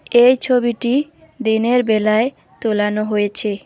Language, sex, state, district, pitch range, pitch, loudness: Bengali, female, West Bengal, Alipurduar, 215-250 Hz, 230 Hz, -17 LUFS